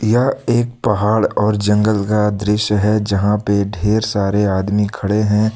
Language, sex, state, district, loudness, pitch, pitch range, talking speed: Hindi, male, Jharkhand, Deoghar, -16 LUFS, 105 Hz, 105-110 Hz, 160 wpm